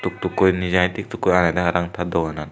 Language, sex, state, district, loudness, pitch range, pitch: Chakma, male, Tripura, Unakoti, -20 LUFS, 85-90 Hz, 90 Hz